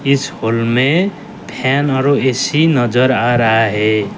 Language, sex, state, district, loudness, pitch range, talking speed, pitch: Hindi, male, Arunachal Pradesh, Lower Dibang Valley, -14 LUFS, 115-140 Hz, 160 wpm, 130 Hz